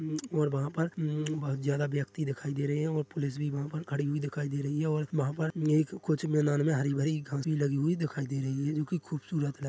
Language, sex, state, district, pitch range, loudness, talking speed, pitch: Hindi, male, Chhattisgarh, Korba, 140-155 Hz, -31 LUFS, 265 wpm, 150 Hz